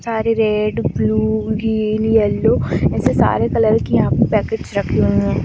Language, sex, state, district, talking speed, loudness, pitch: Hindi, female, Bihar, Madhepura, 165 wpm, -16 LUFS, 215 Hz